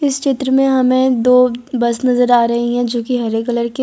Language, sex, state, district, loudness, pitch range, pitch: Hindi, female, Gujarat, Valsad, -14 LUFS, 235-260 Hz, 250 Hz